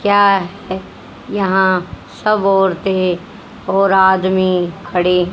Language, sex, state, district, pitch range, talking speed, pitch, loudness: Hindi, female, Haryana, Rohtak, 185-195 Hz, 80 wpm, 190 Hz, -15 LUFS